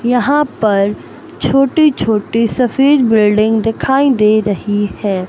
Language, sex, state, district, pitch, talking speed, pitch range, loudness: Hindi, male, Madhya Pradesh, Katni, 225 Hz, 115 wpm, 210-270 Hz, -13 LUFS